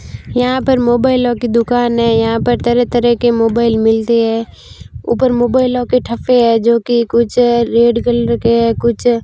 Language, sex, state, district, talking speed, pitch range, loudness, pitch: Hindi, female, Rajasthan, Barmer, 175 wpm, 230-245 Hz, -13 LUFS, 235 Hz